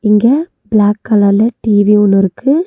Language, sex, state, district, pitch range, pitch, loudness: Tamil, female, Tamil Nadu, Nilgiris, 205-235 Hz, 210 Hz, -11 LUFS